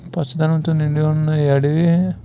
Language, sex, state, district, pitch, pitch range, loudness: Telugu, male, Andhra Pradesh, Visakhapatnam, 155 Hz, 150-165 Hz, -17 LUFS